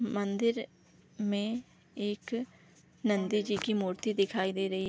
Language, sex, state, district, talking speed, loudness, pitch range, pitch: Hindi, female, Bihar, Darbhanga, 125 wpm, -33 LUFS, 195-225 Hz, 205 Hz